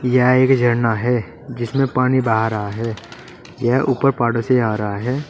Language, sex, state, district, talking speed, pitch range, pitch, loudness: Hindi, male, Uttar Pradesh, Saharanpur, 180 wpm, 115-130 Hz, 120 Hz, -18 LUFS